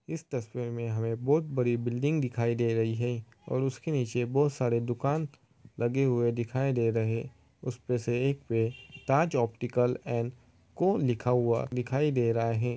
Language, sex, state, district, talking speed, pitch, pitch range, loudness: Hindi, male, Uttar Pradesh, Varanasi, 170 wpm, 125 Hz, 115-135 Hz, -30 LUFS